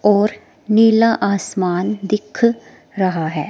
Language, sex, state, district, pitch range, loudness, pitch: Hindi, female, Himachal Pradesh, Shimla, 190-220 Hz, -17 LUFS, 205 Hz